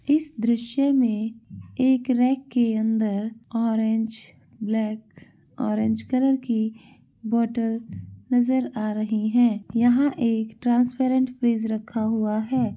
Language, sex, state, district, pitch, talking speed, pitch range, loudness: Hindi, female, Bihar, Saharsa, 230 Hz, 115 wpm, 220-250 Hz, -23 LUFS